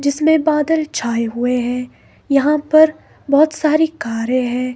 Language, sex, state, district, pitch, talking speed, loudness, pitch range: Hindi, female, Himachal Pradesh, Shimla, 285 Hz, 140 wpm, -16 LUFS, 250-310 Hz